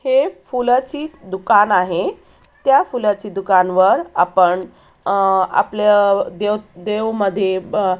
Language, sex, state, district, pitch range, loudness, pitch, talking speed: Marathi, female, Maharashtra, Aurangabad, 185-210 Hz, -17 LUFS, 200 Hz, 115 wpm